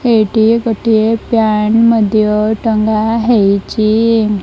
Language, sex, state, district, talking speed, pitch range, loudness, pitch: Odia, female, Odisha, Malkangiri, 95 wpm, 215-230 Hz, -12 LUFS, 220 Hz